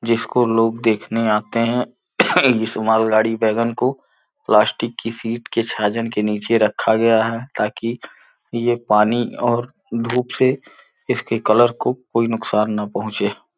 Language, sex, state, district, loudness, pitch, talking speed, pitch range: Hindi, male, Uttar Pradesh, Gorakhpur, -19 LUFS, 115 Hz, 135 wpm, 110-120 Hz